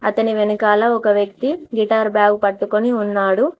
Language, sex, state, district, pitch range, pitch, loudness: Telugu, female, Telangana, Mahabubabad, 205-225 Hz, 210 Hz, -17 LUFS